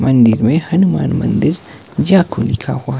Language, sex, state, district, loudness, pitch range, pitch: Hindi, male, Himachal Pradesh, Shimla, -14 LUFS, 115-185 Hz, 145 Hz